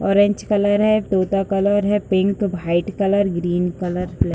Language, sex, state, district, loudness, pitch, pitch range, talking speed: Hindi, female, Uttar Pradesh, Deoria, -19 LUFS, 195 Hz, 180-205 Hz, 150 wpm